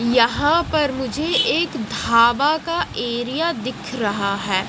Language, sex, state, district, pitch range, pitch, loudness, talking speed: Hindi, female, Odisha, Malkangiri, 230-305 Hz, 250 Hz, -19 LUFS, 130 wpm